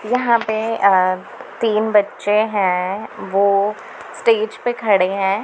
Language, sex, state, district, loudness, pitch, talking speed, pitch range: Hindi, female, Punjab, Pathankot, -18 LUFS, 210 Hz, 120 wpm, 195-225 Hz